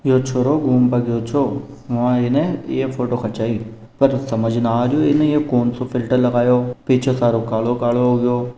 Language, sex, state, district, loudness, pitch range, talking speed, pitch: Marwari, male, Rajasthan, Nagaur, -18 LUFS, 120-130 Hz, 190 wpm, 125 Hz